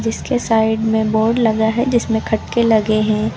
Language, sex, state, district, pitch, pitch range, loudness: Hindi, female, Uttar Pradesh, Lucknow, 220 Hz, 220-230 Hz, -16 LUFS